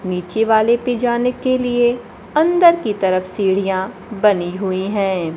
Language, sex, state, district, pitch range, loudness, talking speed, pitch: Hindi, female, Bihar, Kaimur, 190-245 Hz, -17 LUFS, 145 wpm, 210 Hz